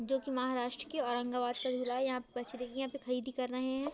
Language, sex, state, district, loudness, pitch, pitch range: Hindi, female, Maharashtra, Aurangabad, -37 LUFS, 255 Hz, 250-265 Hz